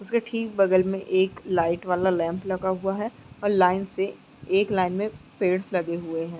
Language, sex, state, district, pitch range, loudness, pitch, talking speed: Hindi, female, Bihar, Araria, 180-195 Hz, -25 LUFS, 185 Hz, 195 wpm